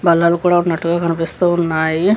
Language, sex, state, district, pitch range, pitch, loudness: Telugu, female, Andhra Pradesh, Visakhapatnam, 165-175 Hz, 170 Hz, -16 LUFS